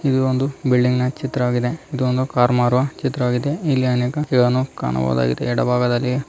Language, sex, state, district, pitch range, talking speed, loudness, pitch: Kannada, male, Karnataka, Raichur, 125-135 Hz, 125 wpm, -19 LUFS, 125 Hz